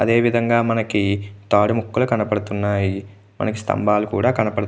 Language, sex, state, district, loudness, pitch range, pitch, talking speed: Telugu, male, Andhra Pradesh, Krishna, -20 LUFS, 100-115 Hz, 105 Hz, 130 wpm